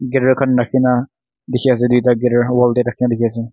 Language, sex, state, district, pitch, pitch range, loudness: Nagamese, male, Nagaland, Kohima, 125 Hz, 120-130 Hz, -15 LUFS